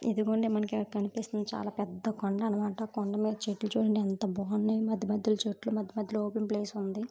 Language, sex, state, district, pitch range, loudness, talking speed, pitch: Telugu, female, Telangana, Karimnagar, 205-220 Hz, -32 LUFS, 185 wpm, 215 Hz